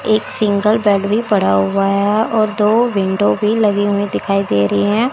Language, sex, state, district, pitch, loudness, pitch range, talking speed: Hindi, female, Chandigarh, Chandigarh, 205 Hz, -15 LUFS, 195-215 Hz, 200 wpm